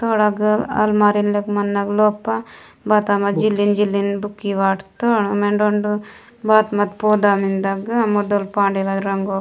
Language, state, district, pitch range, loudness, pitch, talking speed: Gondi, Chhattisgarh, Sukma, 200-210 Hz, -18 LUFS, 205 Hz, 120 wpm